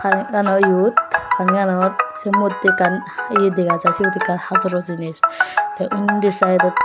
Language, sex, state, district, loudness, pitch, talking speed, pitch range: Chakma, female, Tripura, West Tripura, -17 LUFS, 200 Hz, 140 wpm, 185-215 Hz